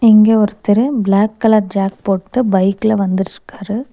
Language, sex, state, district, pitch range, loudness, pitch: Tamil, female, Tamil Nadu, Nilgiris, 195-220 Hz, -14 LUFS, 210 Hz